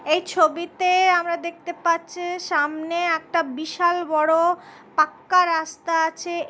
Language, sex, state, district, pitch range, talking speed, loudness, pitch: Bengali, female, West Bengal, Dakshin Dinajpur, 320-350 Hz, 120 wpm, -22 LUFS, 335 Hz